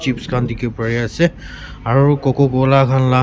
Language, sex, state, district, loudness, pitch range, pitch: Nagamese, male, Nagaland, Kohima, -16 LUFS, 120-135 Hz, 130 Hz